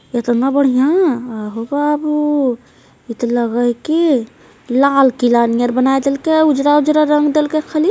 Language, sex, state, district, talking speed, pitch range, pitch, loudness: Hindi, female, Bihar, Jamui, 150 wpm, 240-300 Hz, 275 Hz, -15 LUFS